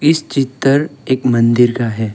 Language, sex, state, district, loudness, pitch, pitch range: Hindi, male, Arunachal Pradesh, Longding, -14 LUFS, 130 Hz, 120-140 Hz